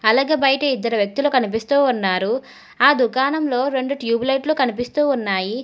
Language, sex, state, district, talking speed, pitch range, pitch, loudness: Telugu, female, Telangana, Hyderabad, 140 wpm, 230-280 Hz, 260 Hz, -19 LUFS